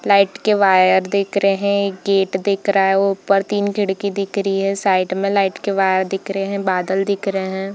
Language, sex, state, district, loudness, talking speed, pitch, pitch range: Hindi, female, Bihar, Darbhanga, -18 LUFS, 215 wpm, 195 Hz, 195-200 Hz